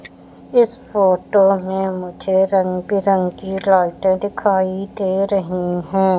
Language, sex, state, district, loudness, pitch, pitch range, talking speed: Hindi, female, Madhya Pradesh, Katni, -18 LUFS, 190 Hz, 180-195 Hz, 105 wpm